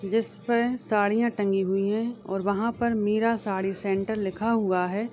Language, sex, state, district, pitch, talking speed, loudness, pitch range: Hindi, female, Uttar Pradesh, Deoria, 210 Hz, 165 wpm, -26 LUFS, 195-230 Hz